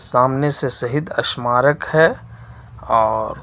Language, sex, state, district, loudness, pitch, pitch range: Hindi, male, Jharkhand, Ranchi, -18 LUFS, 130 Hz, 120-145 Hz